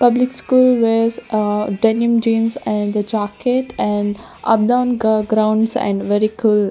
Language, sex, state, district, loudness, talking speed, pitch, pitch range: English, female, Chandigarh, Chandigarh, -17 LUFS, 145 wpm, 225 Hz, 210-240 Hz